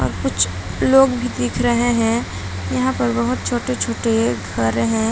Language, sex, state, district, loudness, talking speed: Hindi, female, Uttar Pradesh, Muzaffarnagar, -19 LUFS, 150 wpm